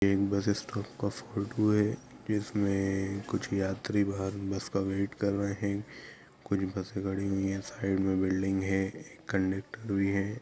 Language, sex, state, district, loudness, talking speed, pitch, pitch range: Hindi, male, Bihar, Gaya, -32 LUFS, 160 wpm, 100 Hz, 95-100 Hz